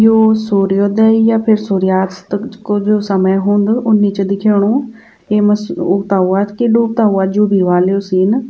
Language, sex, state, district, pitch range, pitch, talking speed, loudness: Garhwali, female, Uttarakhand, Tehri Garhwal, 195-220 Hz, 205 Hz, 170 wpm, -13 LUFS